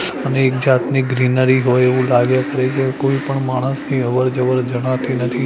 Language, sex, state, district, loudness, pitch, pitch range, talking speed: Gujarati, male, Gujarat, Gandhinagar, -16 LUFS, 130 Hz, 125-135 Hz, 155 wpm